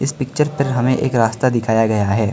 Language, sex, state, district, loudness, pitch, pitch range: Hindi, male, Arunachal Pradesh, Lower Dibang Valley, -17 LUFS, 125 Hz, 110-135 Hz